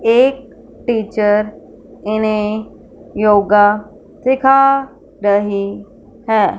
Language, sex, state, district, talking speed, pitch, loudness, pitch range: Hindi, female, Punjab, Fazilka, 65 wpm, 215 Hz, -15 LUFS, 205-245 Hz